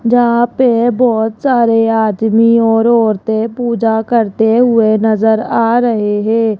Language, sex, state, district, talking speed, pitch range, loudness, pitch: Hindi, female, Rajasthan, Jaipur, 125 wpm, 220-235 Hz, -12 LUFS, 225 Hz